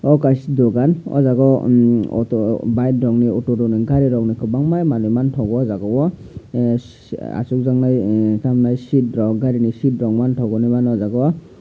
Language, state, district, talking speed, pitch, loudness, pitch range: Kokborok, Tripura, Dhalai, 175 wpm, 120 Hz, -17 LUFS, 115-130 Hz